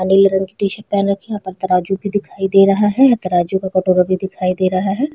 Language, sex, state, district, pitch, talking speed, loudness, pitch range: Hindi, female, Chhattisgarh, Bilaspur, 195 Hz, 290 wpm, -16 LUFS, 185-200 Hz